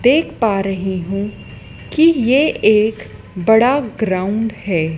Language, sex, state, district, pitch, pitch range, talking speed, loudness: Hindi, female, Madhya Pradesh, Dhar, 215 Hz, 190-245 Hz, 120 wpm, -16 LUFS